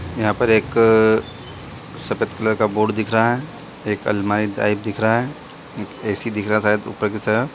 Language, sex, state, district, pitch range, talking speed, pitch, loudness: Hindi, male, Chhattisgarh, Bilaspur, 105-115 Hz, 200 wpm, 110 Hz, -19 LUFS